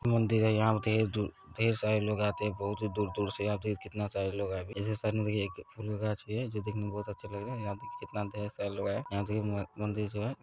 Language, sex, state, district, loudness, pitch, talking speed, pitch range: Hindi, male, Bihar, Araria, -34 LUFS, 105 Hz, 235 wpm, 100-110 Hz